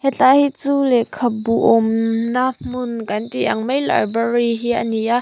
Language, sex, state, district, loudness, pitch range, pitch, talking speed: Mizo, female, Mizoram, Aizawl, -18 LUFS, 230-260 Hz, 240 Hz, 195 wpm